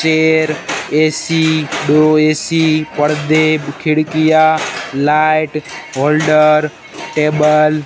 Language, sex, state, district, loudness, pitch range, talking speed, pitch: Hindi, male, Gujarat, Gandhinagar, -13 LUFS, 150-155 Hz, 75 wpm, 155 Hz